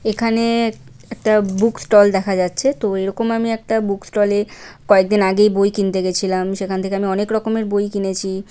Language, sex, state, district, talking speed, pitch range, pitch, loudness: Bengali, female, West Bengal, Kolkata, 155 wpm, 195-220 Hz, 205 Hz, -17 LUFS